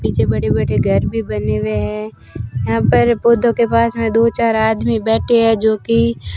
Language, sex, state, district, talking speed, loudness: Hindi, female, Rajasthan, Bikaner, 205 wpm, -15 LUFS